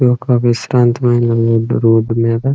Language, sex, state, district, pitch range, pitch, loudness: Telugu, male, Andhra Pradesh, Srikakulam, 115-125 Hz, 120 Hz, -13 LUFS